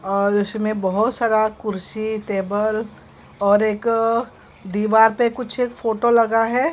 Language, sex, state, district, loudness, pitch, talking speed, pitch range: Hindi, female, Maharashtra, Mumbai Suburban, -19 LUFS, 220 Hz, 135 wpm, 205-230 Hz